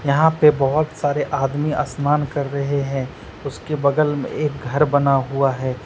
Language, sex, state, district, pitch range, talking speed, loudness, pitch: Hindi, male, Jharkhand, Deoghar, 135-150 Hz, 175 wpm, -19 LUFS, 145 Hz